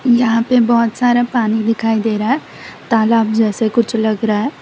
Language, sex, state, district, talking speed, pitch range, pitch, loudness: Hindi, female, Gujarat, Valsad, 195 wpm, 220-240 Hz, 225 Hz, -15 LUFS